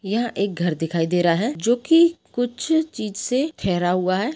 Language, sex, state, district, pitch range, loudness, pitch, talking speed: Hindi, female, Chhattisgarh, Balrampur, 175-250 Hz, -21 LUFS, 210 Hz, 205 wpm